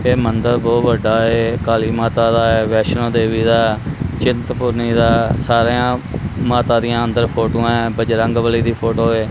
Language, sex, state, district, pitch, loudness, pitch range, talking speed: Punjabi, male, Punjab, Kapurthala, 115 Hz, -16 LUFS, 115-120 Hz, 150 wpm